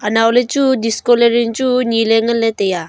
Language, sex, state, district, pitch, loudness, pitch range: Wancho, female, Arunachal Pradesh, Longding, 230 Hz, -14 LUFS, 225-245 Hz